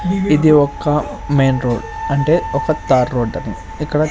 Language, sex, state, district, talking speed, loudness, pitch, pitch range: Telugu, male, Andhra Pradesh, Sri Satya Sai, 145 wpm, -16 LUFS, 150 Hz, 125-155 Hz